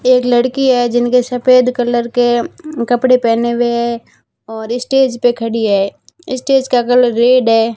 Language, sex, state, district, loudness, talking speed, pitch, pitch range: Hindi, female, Rajasthan, Barmer, -13 LUFS, 160 wpm, 245 Hz, 235-255 Hz